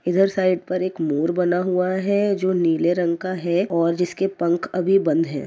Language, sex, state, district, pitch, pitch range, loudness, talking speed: Hindi, male, Uttar Pradesh, Jyotiba Phule Nagar, 180 Hz, 170-185 Hz, -21 LUFS, 210 wpm